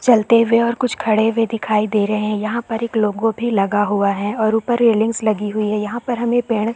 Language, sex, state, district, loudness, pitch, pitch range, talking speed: Hindi, female, Chhattisgarh, Korba, -18 LUFS, 220 Hz, 210-230 Hz, 240 wpm